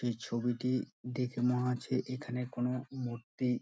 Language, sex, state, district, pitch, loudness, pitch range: Bengali, male, West Bengal, Dakshin Dinajpur, 125 Hz, -36 LUFS, 120-125 Hz